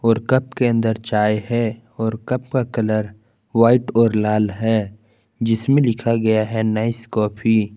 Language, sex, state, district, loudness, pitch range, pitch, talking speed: Hindi, male, Jharkhand, Palamu, -19 LUFS, 110-115 Hz, 115 Hz, 155 wpm